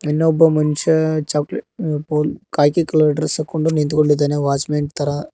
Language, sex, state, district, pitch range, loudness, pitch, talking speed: Kannada, male, Karnataka, Koppal, 150-155 Hz, -18 LUFS, 150 Hz, 135 wpm